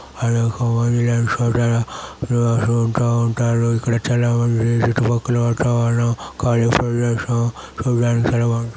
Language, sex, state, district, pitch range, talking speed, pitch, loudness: Telugu, male, Andhra Pradesh, Chittoor, 115-120 Hz, 80 wpm, 120 Hz, -18 LUFS